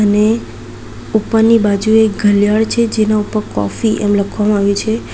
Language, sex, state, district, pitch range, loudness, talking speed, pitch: Gujarati, female, Gujarat, Valsad, 200-220 Hz, -14 LUFS, 140 wpm, 210 Hz